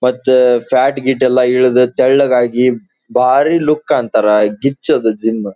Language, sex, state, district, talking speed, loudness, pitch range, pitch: Kannada, male, Karnataka, Dharwad, 150 wpm, -13 LUFS, 115-130 Hz, 125 Hz